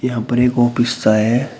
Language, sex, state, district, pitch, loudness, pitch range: Hindi, male, Uttar Pradesh, Shamli, 120 Hz, -16 LUFS, 115-125 Hz